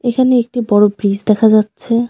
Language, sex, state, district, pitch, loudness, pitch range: Bengali, female, West Bengal, Alipurduar, 220 Hz, -13 LUFS, 210-240 Hz